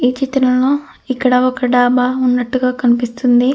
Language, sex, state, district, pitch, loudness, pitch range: Telugu, female, Andhra Pradesh, Krishna, 250 Hz, -15 LUFS, 245-260 Hz